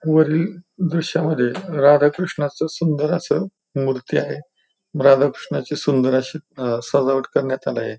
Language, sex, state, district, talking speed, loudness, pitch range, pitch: Marathi, male, Maharashtra, Pune, 115 wpm, -20 LUFS, 135-165 Hz, 145 Hz